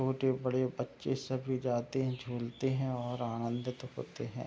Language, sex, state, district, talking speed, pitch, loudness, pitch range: Hindi, male, Bihar, Madhepura, 150 wpm, 130 Hz, -36 LUFS, 120-130 Hz